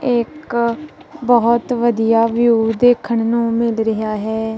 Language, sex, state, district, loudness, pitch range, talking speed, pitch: Punjabi, female, Punjab, Kapurthala, -16 LUFS, 225-240 Hz, 120 wpm, 235 Hz